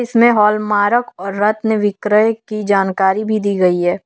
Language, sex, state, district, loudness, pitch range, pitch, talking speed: Hindi, female, Jharkhand, Deoghar, -15 LUFS, 195-220 Hz, 210 Hz, 160 wpm